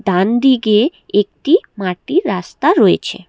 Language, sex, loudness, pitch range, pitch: Bengali, female, -15 LUFS, 195-290 Hz, 220 Hz